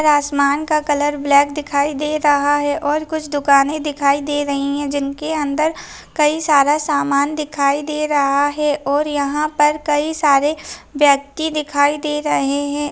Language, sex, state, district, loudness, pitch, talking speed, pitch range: Hindi, female, Maharashtra, Aurangabad, -17 LUFS, 290 Hz, 165 wpm, 285-300 Hz